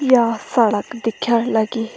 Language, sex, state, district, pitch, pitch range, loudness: Garhwali, female, Uttarakhand, Tehri Garhwal, 230 Hz, 225-240 Hz, -18 LUFS